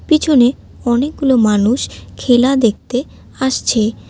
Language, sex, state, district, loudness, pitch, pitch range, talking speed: Bengali, female, West Bengal, Alipurduar, -15 LUFS, 250 Hz, 235-270 Hz, 90 wpm